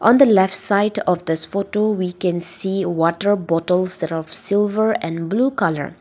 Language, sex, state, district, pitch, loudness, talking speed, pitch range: English, female, Nagaland, Dimapur, 190 Hz, -19 LUFS, 180 wpm, 170-205 Hz